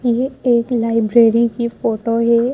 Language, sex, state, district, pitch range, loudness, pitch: Hindi, female, Madhya Pradesh, Bhopal, 230-240 Hz, -16 LUFS, 235 Hz